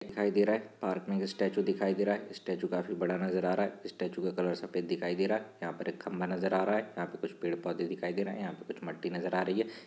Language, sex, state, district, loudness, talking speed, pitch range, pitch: Hindi, male, Chhattisgarh, Raigarh, -34 LUFS, 290 wpm, 90-100 Hz, 95 Hz